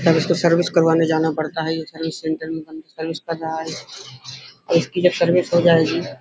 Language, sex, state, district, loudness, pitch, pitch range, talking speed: Hindi, male, Uttar Pradesh, Hamirpur, -19 LUFS, 160 Hz, 160-170 Hz, 210 wpm